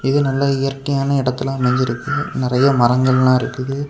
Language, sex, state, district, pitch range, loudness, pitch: Tamil, male, Tamil Nadu, Kanyakumari, 130-140 Hz, -17 LUFS, 135 Hz